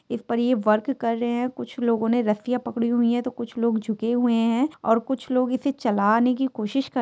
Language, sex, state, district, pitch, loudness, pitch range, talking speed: Hindi, female, Jharkhand, Sahebganj, 240 Hz, -23 LUFS, 230-255 Hz, 230 wpm